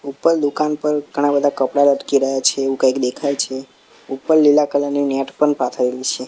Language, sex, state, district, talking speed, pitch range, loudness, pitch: Gujarati, male, Gujarat, Gandhinagar, 200 wpm, 135-145 Hz, -17 LUFS, 140 Hz